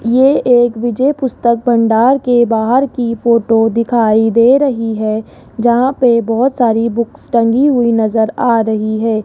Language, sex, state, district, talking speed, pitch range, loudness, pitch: Hindi, female, Rajasthan, Jaipur, 155 wpm, 225-250 Hz, -12 LUFS, 235 Hz